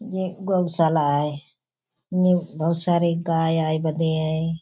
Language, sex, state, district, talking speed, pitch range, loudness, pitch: Hindi, female, Uttar Pradesh, Budaun, 130 wpm, 155-180 Hz, -22 LUFS, 165 Hz